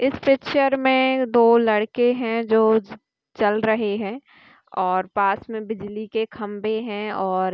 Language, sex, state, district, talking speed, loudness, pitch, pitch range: Hindi, female, Chhattisgarh, Kabirdham, 145 wpm, -21 LUFS, 220 Hz, 210-240 Hz